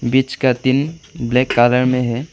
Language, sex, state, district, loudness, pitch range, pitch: Hindi, male, Arunachal Pradesh, Longding, -16 LUFS, 125-135 Hz, 125 Hz